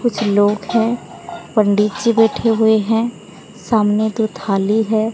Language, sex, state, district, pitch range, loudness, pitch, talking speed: Hindi, female, Odisha, Sambalpur, 205-225 Hz, -16 LUFS, 220 Hz, 140 wpm